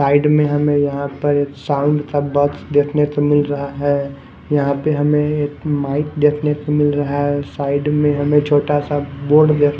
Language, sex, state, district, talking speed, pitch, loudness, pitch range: Hindi, male, Chandigarh, Chandigarh, 170 wpm, 145 Hz, -17 LUFS, 145-150 Hz